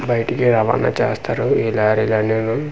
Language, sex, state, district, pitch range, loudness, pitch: Telugu, male, Andhra Pradesh, Manyam, 110-125 Hz, -18 LUFS, 110 Hz